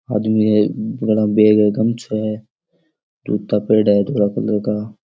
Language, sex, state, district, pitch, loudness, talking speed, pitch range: Rajasthani, male, Rajasthan, Nagaur, 105 Hz, -17 LUFS, 155 wpm, 105-110 Hz